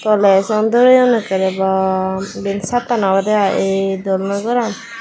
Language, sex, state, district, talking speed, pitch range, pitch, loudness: Chakma, female, Tripura, Dhalai, 145 wpm, 190-230 Hz, 200 Hz, -15 LUFS